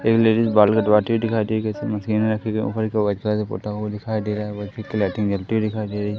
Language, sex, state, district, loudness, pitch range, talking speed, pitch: Hindi, male, Madhya Pradesh, Katni, -21 LUFS, 105-110 Hz, 300 wpm, 105 Hz